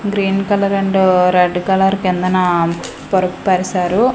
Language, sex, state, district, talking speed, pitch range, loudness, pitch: Telugu, female, Andhra Pradesh, Manyam, 115 wpm, 180-195 Hz, -15 LUFS, 185 Hz